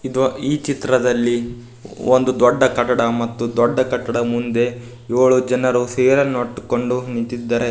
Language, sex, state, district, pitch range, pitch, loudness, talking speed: Kannada, male, Karnataka, Koppal, 120-130 Hz, 120 Hz, -18 LUFS, 125 wpm